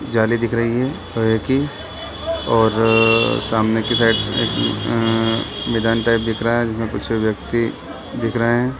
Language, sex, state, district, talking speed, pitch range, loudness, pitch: Hindi, male, Chhattisgarh, Bilaspur, 165 wpm, 110-115 Hz, -18 LUFS, 115 Hz